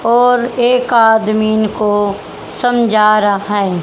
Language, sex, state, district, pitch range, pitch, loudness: Hindi, female, Haryana, Charkhi Dadri, 205-240 Hz, 215 Hz, -12 LUFS